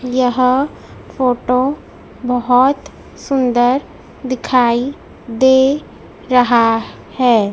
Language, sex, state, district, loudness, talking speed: Hindi, female, Madhya Pradesh, Dhar, -15 LUFS, 65 wpm